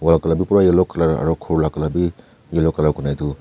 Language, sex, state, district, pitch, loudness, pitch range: Nagamese, male, Nagaland, Kohima, 80 Hz, -18 LUFS, 75-85 Hz